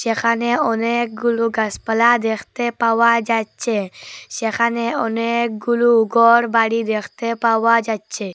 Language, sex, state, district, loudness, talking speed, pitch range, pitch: Bengali, female, Assam, Hailakandi, -18 LUFS, 85 wpm, 225-235 Hz, 230 Hz